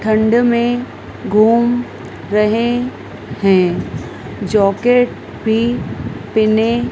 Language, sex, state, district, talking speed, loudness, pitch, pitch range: Hindi, female, Madhya Pradesh, Dhar, 70 wpm, -15 LUFS, 225 Hz, 210-240 Hz